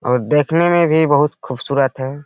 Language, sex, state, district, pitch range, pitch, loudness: Hindi, male, Bihar, Bhagalpur, 130-155 Hz, 145 Hz, -15 LUFS